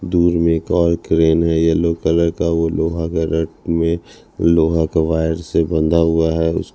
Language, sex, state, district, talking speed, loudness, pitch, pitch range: Hindi, male, Punjab, Kapurthala, 185 wpm, -17 LUFS, 80 Hz, 80-85 Hz